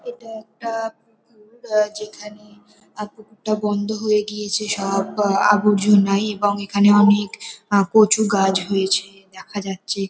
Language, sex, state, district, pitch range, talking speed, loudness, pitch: Bengali, female, West Bengal, North 24 Parganas, 200-215 Hz, 130 wpm, -19 LUFS, 210 Hz